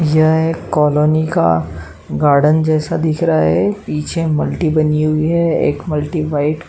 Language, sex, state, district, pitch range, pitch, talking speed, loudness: Hindi, male, Uttar Pradesh, Muzaffarnagar, 150-160 Hz, 155 Hz, 160 wpm, -15 LUFS